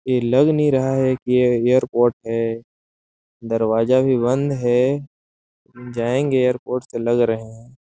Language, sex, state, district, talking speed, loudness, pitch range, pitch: Hindi, male, Chhattisgarh, Sarguja, 155 wpm, -19 LUFS, 115-130 Hz, 125 Hz